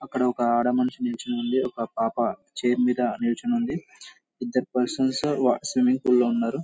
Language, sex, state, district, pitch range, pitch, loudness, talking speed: Telugu, male, Telangana, Karimnagar, 120-130 Hz, 125 Hz, -25 LUFS, 155 wpm